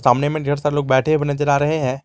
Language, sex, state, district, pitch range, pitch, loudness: Hindi, male, Jharkhand, Garhwa, 135-150 Hz, 145 Hz, -18 LUFS